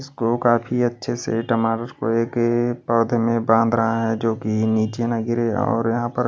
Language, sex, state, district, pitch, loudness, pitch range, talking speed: Hindi, male, Maharashtra, Washim, 115 Hz, -21 LUFS, 115-120 Hz, 190 wpm